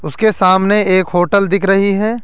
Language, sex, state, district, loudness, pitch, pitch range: Hindi, male, Rajasthan, Jaipur, -13 LUFS, 195 Hz, 185-210 Hz